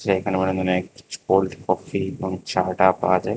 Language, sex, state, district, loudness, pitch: Bengali, male, Tripura, West Tripura, -22 LUFS, 95 Hz